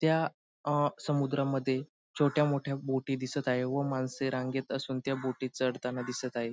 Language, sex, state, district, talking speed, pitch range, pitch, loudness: Marathi, male, Maharashtra, Sindhudurg, 155 wpm, 130-140 Hz, 135 Hz, -32 LUFS